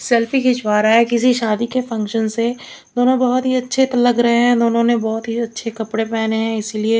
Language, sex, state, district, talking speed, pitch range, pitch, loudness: Hindi, female, Chandigarh, Chandigarh, 225 wpm, 225-245 Hz, 235 Hz, -17 LUFS